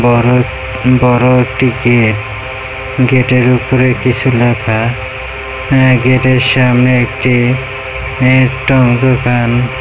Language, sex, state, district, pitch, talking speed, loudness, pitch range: Bengali, male, West Bengal, Kolkata, 130 Hz, 90 wpm, -11 LUFS, 120-130 Hz